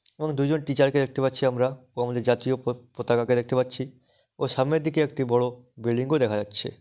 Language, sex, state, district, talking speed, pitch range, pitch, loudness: Bengali, male, West Bengal, Dakshin Dinajpur, 210 wpm, 120-140 Hz, 130 Hz, -25 LUFS